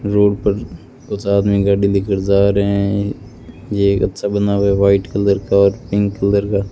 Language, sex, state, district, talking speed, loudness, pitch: Hindi, male, Rajasthan, Bikaner, 195 wpm, -16 LUFS, 100 Hz